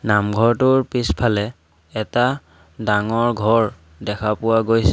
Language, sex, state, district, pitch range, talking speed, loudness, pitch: Assamese, male, Assam, Sonitpur, 105-115 Hz, 95 wpm, -19 LUFS, 110 Hz